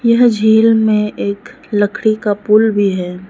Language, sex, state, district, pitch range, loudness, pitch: Hindi, female, Arunachal Pradesh, Lower Dibang Valley, 205-225 Hz, -13 LUFS, 215 Hz